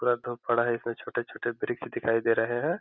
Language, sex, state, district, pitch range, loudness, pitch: Hindi, male, Bihar, Gopalganj, 115-120 Hz, -29 LUFS, 120 Hz